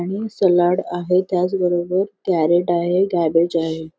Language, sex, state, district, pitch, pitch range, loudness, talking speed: Marathi, female, Maharashtra, Sindhudurg, 175 Hz, 170-185 Hz, -19 LUFS, 135 wpm